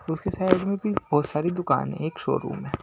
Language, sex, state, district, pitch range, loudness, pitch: Hindi, male, Maharashtra, Washim, 150-185 Hz, -26 LUFS, 160 Hz